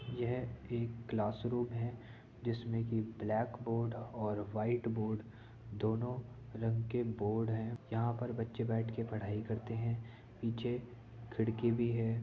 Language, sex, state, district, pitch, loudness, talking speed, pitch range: Hindi, male, Uttar Pradesh, Jyotiba Phule Nagar, 115 Hz, -38 LUFS, 140 wpm, 110-120 Hz